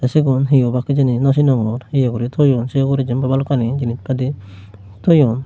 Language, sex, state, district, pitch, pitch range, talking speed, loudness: Chakma, male, Tripura, Unakoti, 130 Hz, 120-135 Hz, 175 wpm, -16 LUFS